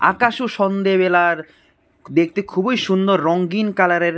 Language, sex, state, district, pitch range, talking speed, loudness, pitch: Bengali, male, Tripura, West Tripura, 175-205 Hz, 85 wpm, -18 LUFS, 190 Hz